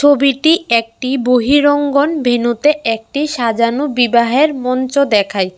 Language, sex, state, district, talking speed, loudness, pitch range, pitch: Bengali, female, Tripura, West Tripura, 95 wpm, -14 LUFS, 235-290 Hz, 255 Hz